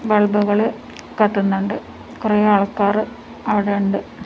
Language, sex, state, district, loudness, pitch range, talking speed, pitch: Malayalam, female, Kerala, Kasaragod, -18 LUFS, 200-215 Hz, 70 wpm, 210 Hz